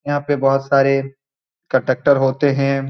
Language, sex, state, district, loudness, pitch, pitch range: Hindi, male, Bihar, Saran, -17 LUFS, 135 Hz, 135-140 Hz